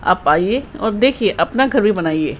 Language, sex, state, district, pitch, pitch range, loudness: Hindi, male, Rajasthan, Jaipur, 210 Hz, 165-250 Hz, -16 LUFS